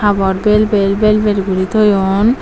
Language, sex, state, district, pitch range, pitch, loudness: Chakma, female, Tripura, Dhalai, 195-215 Hz, 205 Hz, -13 LUFS